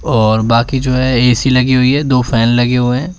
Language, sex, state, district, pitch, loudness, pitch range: Hindi, male, Uttar Pradesh, Shamli, 125 Hz, -12 LUFS, 120-130 Hz